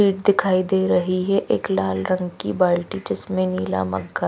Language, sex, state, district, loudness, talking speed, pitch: Hindi, female, Himachal Pradesh, Shimla, -21 LUFS, 195 wpm, 175 Hz